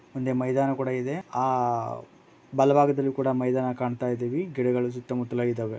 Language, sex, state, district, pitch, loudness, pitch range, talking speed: Kannada, male, Karnataka, Bellary, 125 Hz, -26 LUFS, 125-135 Hz, 135 wpm